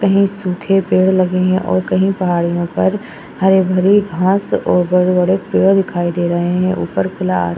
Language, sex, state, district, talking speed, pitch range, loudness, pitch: Hindi, female, Uttar Pradesh, Etah, 175 wpm, 175-195 Hz, -15 LUFS, 185 Hz